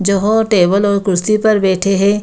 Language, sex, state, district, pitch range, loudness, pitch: Hindi, female, Bihar, Gaya, 195-210 Hz, -13 LUFS, 200 Hz